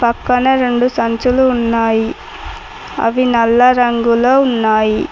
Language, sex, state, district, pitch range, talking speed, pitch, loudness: Telugu, female, Telangana, Mahabubabad, 230-255 Hz, 95 wpm, 240 Hz, -13 LUFS